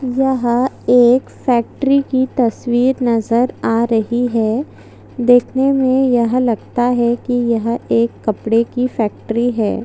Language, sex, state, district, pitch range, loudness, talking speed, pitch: Hindi, female, Chhattisgarh, Jashpur, 230-255 Hz, -16 LUFS, 130 wpm, 240 Hz